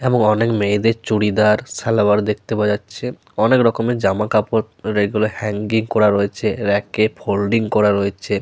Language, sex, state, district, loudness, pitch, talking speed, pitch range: Bengali, male, Jharkhand, Sahebganj, -18 LUFS, 105 Hz, 140 wpm, 105-115 Hz